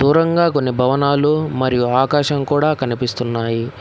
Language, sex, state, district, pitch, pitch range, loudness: Telugu, male, Telangana, Hyderabad, 135 Hz, 125-145 Hz, -17 LUFS